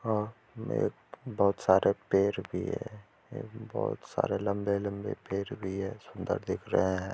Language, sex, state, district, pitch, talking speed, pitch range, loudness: Hindi, male, Bihar, Gopalganj, 100 Hz, 125 wpm, 95-110 Hz, -31 LUFS